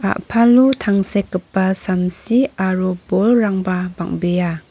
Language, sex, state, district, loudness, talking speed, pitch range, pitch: Garo, female, Meghalaya, North Garo Hills, -16 LUFS, 75 wpm, 180-215 Hz, 190 Hz